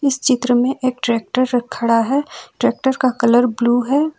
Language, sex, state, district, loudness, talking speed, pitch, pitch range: Hindi, female, Jharkhand, Ranchi, -17 LUFS, 185 wpm, 250 Hz, 240-265 Hz